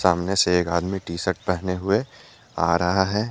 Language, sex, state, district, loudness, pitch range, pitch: Hindi, male, Jharkhand, Deoghar, -23 LUFS, 90-95 Hz, 90 Hz